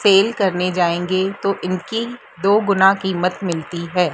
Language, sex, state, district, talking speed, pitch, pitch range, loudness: Hindi, female, Madhya Pradesh, Dhar, 145 wpm, 190 Hz, 180-200 Hz, -18 LUFS